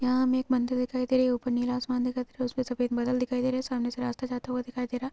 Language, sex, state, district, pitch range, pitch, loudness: Hindi, female, Jharkhand, Jamtara, 245-255 Hz, 250 Hz, -29 LUFS